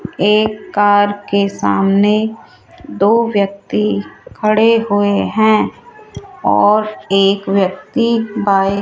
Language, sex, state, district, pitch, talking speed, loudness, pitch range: Hindi, female, Rajasthan, Jaipur, 205 Hz, 95 wpm, -14 LUFS, 195-220 Hz